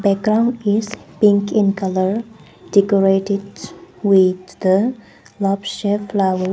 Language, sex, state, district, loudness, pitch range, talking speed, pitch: English, female, Arunachal Pradesh, Papum Pare, -17 LUFS, 190-210 Hz, 100 wpm, 200 Hz